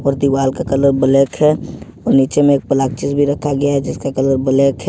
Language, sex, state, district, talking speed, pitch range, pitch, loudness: Hindi, male, Jharkhand, Ranchi, 235 wpm, 135-145 Hz, 140 Hz, -15 LUFS